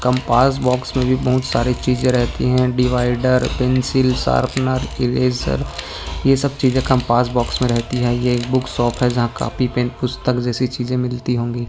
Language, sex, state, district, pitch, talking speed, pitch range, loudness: Hindi, male, Maharashtra, Sindhudurg, 125 Hz, 175 wpm, 120-130 Hz, -18 LUFS